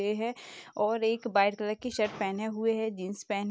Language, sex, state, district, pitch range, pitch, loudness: Hindi, female, Uttar Pradesh, Jalaun, 205-225 Hz, 215 Hz, -31 LUFS